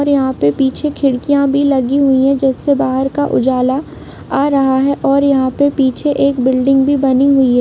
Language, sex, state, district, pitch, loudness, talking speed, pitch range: Hindi, female, Bihar, Saharsa, 275 Hz, -13 LUFS, 190 wpm, 265-280 Hz